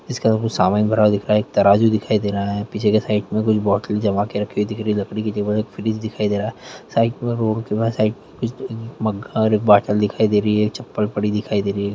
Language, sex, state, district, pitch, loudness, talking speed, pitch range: Hindi, male, Bihar, Araria, 105 Hz, -19 LUFS, 275 wpm, 105-110 Hz